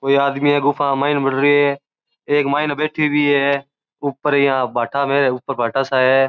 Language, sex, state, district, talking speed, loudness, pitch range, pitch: Marwari, male, Rajasthan, Churu, 155 wpm, -17 LUFS, 135-145 Hz, 140 Hz